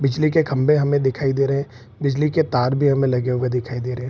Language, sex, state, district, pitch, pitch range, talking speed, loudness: Hindi, male, Bihar, Araria, 135 Hz, 125-145 Hz, 250 wpm, -20 LUFS